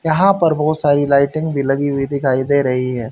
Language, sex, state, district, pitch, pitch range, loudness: Hindi, male, Haryana, Charkhi Dadri, 140 Hz, 135-155 Hz, -16 LUFS